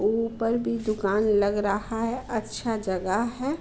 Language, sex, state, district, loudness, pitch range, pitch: Hindi, female, Bihar, Muzaffarpur, -26 LUFS, 205-230 Hz, 225 Hz